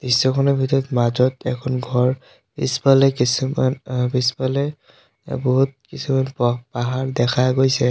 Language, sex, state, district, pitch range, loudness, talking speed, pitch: Assamese, male, Assam, Sonitpur, 125-135 Hz, -20 LUFS, 115 wpm, 130 Hz